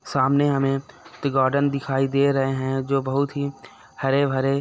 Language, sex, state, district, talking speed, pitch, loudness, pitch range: Hindi, male, Chhattisgarh, Raigarh, 155 wpm, 135 Hz, -22 LUFS, 135-140 Hz